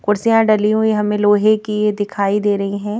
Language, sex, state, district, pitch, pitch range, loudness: Hindi, female, Madhya Pradesh, Bhopal, 210 Hz, 205-215 Hz, -16 LUFS